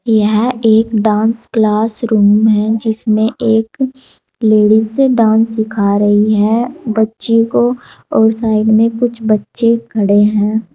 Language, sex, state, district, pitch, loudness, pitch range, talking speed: Hindi, female, Uttar Pradesh, Saharanpur, 220 Hz, -12 LUFS, 215-230 Hz, 130 wpm